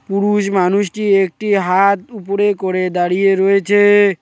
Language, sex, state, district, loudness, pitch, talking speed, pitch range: Bengali, male, West Bengal, Cooch Behar, -14 LUFS, 195 Hz, 115 wpm, 190-205 Hz